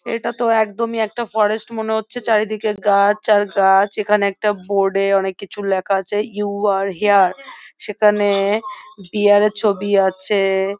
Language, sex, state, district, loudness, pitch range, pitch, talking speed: Bengali, female, West Bengal, Jhargram, -17 LUFS, 195-215 Hz, 205 Hz, 155 wpm